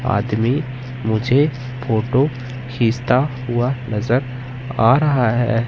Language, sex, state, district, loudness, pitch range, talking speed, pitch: Hindi, male, Madhya Pradesh, Katni, -19 LUFS, 115-130 Hz, 95 wpm, 125 Hz